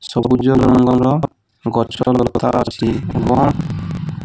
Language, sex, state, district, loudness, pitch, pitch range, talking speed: Odia, male, Odisha, Nuapada, -16 LUFS, 125 Hz, 120-130 Hz, 100 wpm